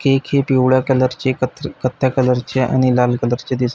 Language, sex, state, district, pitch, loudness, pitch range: Marathi, male, Maharashtra, Pune, 130 Hz, -17 LUFS, 125-130 Hz